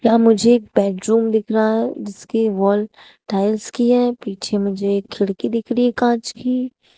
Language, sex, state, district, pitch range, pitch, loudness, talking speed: Hindi, female, Uttar Pradesh, Shamli, 200-240 Hz, 225 Hz, -18 LUFS, 180 wpm